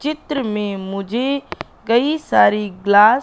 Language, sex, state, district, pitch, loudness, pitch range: Hindi, female, Madhya Pradesh, Katni, 230 Hz, -18 LUFS, 205-280 Hz